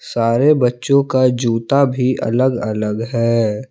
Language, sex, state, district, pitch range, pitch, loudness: Hindi, male, Jharkhand, Palamu, 115-130 Hz, 120 Hz, -16 LUFS